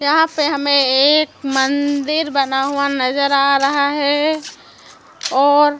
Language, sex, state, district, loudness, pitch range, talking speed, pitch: Hindi, female, Chhattisgarh, Raipur, -15 LUFS, 275-295 Hz, 125 wpm, 285 Hz